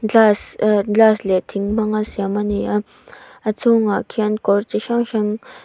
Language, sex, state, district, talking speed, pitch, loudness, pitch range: Mizo, female, Mizoram, Aizawl, 190 wpm, 215 Hz, -18 LUFS, 205-220 Hz